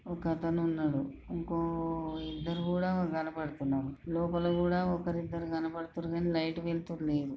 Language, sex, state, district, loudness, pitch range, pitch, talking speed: Telugu, male, Andhra Pradesh, Srikakulam, -34 LUFS, 160-170 Hz, 165 Hz, 140 wpm